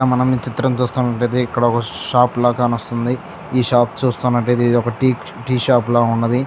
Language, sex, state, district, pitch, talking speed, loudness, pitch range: Telugu, male, Andhra Pradesh, Chittoor, 125 Hz, 195 wpm, -17 LUFS, 120-125 Hz